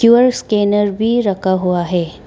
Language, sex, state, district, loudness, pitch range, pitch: Hindi, female, Arunachal Pradesh, Papum Pare, -15 LUFS, 185-230 Hz, 205 Hz